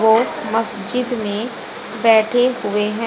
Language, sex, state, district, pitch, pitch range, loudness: Hindi, female, Haryana, Rohtak, 225 Hz, 215-240 Hz, -18 LUFS